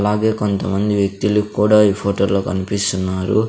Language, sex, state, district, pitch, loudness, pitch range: Telugu, male, Andhra Pradesh, Sri Satya Sai, 100 Hz, -17 LUFS, 100-105 Hz